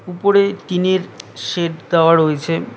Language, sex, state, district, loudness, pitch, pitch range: Bengali, male, West Bengal, Cooch Behar, -16 LUFS, 170 Hz, 160-185 Hz